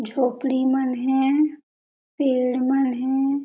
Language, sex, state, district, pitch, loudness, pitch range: Chhattisgarhi, female, Chhattisgarh, Jashpur, 265 Hz, -22 LUFS, 255-275 Hz